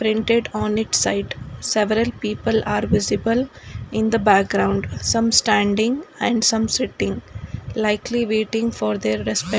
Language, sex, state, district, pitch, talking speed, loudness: English, female, Karnataka, Bangalore, 215 Hz, 140 wpm, -20 LUFS